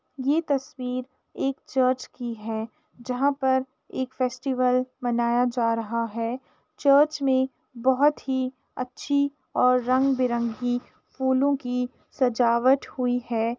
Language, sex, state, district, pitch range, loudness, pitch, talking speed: Hindi, female, Uttar Pradesh, Jalaun, 245-265 Hz, -25 LUFS, 255 Hz, 115 wpm